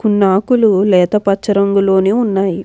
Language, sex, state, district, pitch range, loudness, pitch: Telugu, female, Andhra Pradesh, Anantapur, 190-210 Hz, -13 LUFS, 200 Hz